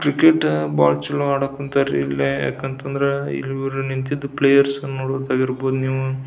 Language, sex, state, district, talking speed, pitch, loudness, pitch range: Kannada, male, Karnataka, Belgaum, 165 wpm, 135 Hz, -20 LUFS, 130-140 Hz